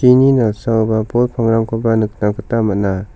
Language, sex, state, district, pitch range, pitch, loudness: Garo, male, Meghalaya, South Garo Hills, 105-120 Hz, 115 Hz, -15 LUFS